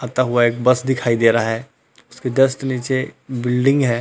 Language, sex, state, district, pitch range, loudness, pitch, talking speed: Hindi, male, Chhattisgarh, Rajnandgaon, 120-135 Hz, -18 LUFS, 125 Hz, 195 wpm